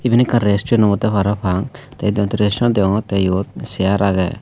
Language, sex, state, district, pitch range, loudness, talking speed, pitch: Chakma, male, Tripura, Unakoti, 100-115 Hz, -17 LUFS, 165 wpm, 105 Hz